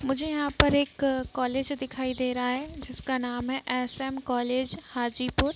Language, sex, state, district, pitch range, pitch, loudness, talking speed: Hindi, female, Bihar, East Champaran, 250-275 Hz, 260 Hz, -28 LUFS, 160 wpm